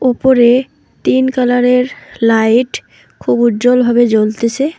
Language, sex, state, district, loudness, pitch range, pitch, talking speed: Bengali, female, West Bengal, Alipurduar, -12 LUFS, 225-255 Hz, 240 Hz, 100 wpm